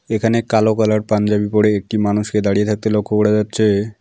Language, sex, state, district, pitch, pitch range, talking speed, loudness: Bengali, male, West Bengal, Alipurduar, 105 Hz, 105-110 Hz, 180 wpm, -16 LUFS